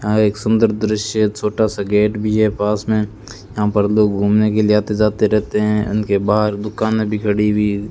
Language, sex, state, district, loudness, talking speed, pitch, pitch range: Hindi, male, Rajasthan, Bikaner, -17 LUFS, 220 wpm, 105 Hz, 105-110 Hz